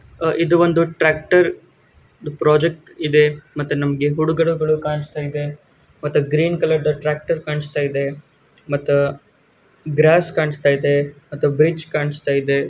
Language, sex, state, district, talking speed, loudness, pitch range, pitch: Kannada, male, Karnataka, Gulbarga, 120 wpm, -18 LUFS, 145-160 Hz, 150 Hz